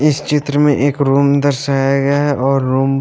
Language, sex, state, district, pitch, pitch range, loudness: Hindi, male, Haryana, Jhajjar, 140 Hz, 135-145 Hz, -14 LUFS